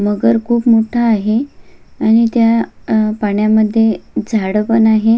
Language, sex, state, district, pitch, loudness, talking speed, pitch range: Marathi, female, Maharashtra, Sindhudurg, 220 Hz, -14 LUFS, 115 wpm, 215-230 Hz